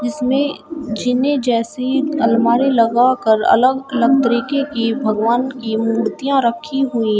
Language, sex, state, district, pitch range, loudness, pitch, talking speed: Hindi, female, Uttar Pradesh, Shamli, 230-270 Hz, -16 LUFS, 245 Hz, 115 wpm